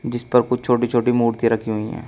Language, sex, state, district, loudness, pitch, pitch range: Hindi, male, Uttar Pradesh, Shamli, -19 LUFS, 120 Hz, 115-125 Hz